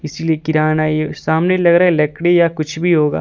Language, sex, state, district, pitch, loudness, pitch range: Hindi, male, Bihar, Kaimur, 160 Hz, -15 LUFS, 155-170 Hz